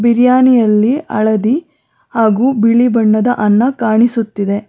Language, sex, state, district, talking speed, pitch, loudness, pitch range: Kannada, female, Karnataka, Bangalore, 100 wpm, 230 Hz, -12 LUFS, 215-245 Hz